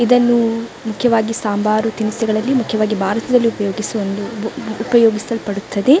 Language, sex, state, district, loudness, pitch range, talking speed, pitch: Kannada, female, Karnataka, Dakshina Kannada, -17 LUFS, 215-230 Hz, 90 wpm, 220 Hz